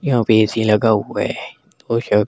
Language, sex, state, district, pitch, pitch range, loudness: Hindi, male, Delhi, New Delhi, 110 Hz, 105-115 Hz, -17 LUFS